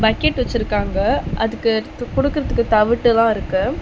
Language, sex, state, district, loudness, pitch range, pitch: Tamil, female, Tamil Nadu, Chennai, -18 LUFS, 220-240 Hz, 230 Hz